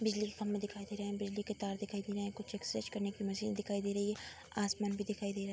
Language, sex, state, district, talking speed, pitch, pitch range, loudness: Hindi, female, Uttar Pradesh, Budaun, 315 wpm, 205 Hz, 200-210 Hz, -39 LUFS